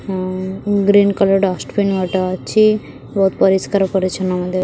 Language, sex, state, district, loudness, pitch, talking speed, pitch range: Odia, female, Odisha, Khordha, -16 LUFS, 190 Hz, 140 wpm, 185-200 Hz